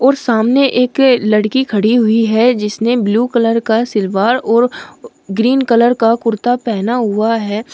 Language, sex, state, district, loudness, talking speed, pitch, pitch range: Hindi, female, Uttar Pradesh, Shamli, -13 LUFS, 155 wpm, 230 Hz, 220-245 Hz